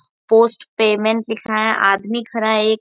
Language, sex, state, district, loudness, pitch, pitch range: Hindi, female, Bihar, Bhagalpur, -17 LUFS, 220 Hz, 215-225 Hz